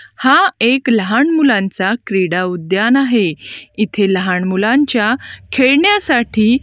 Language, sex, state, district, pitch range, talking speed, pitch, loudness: Marathi, female, Maharashtra, Gondia, 195-265 Hz, 100 wpm, 230 Hz, -14 LUFS